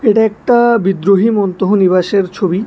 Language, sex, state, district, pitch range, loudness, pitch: Bengali, male, Tripura, West Tripura, 190-220 Hz, -12 LUFS, 200 Hz